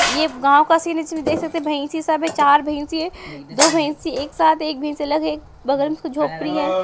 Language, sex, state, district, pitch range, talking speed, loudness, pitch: Hindi, male, Bihar, West Champaran, 295-320 Hz, 245 wpm, -19 LUFS, 310 Hz